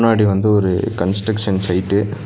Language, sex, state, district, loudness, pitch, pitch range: Tamil, male, Tamil Nadu, Nilgiris, -17 LUFS, 100 Hz, 95-110 Hz